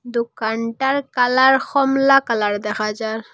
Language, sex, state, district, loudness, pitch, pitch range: Bengali, female, Assam, Hailakandi, -18 LUFS, 240 Hz, 220-270 Hz